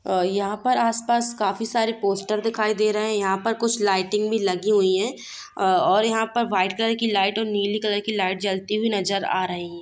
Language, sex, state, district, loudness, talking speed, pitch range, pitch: Hindi, female, Bihar, Gopalganj, -22 LUFS, 230 wpm, 195-225 Hz, 210 Hz